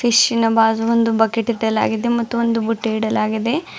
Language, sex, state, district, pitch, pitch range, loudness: Kannada, female, Karnataka, Bidar, 225 Hz, 225-235 Hz, -18 LUFS